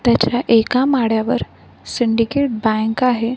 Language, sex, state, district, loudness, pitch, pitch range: Marathi, female, Maharashtra, Gondia, -17 LUFS, 235 Hz, 225-255 Hz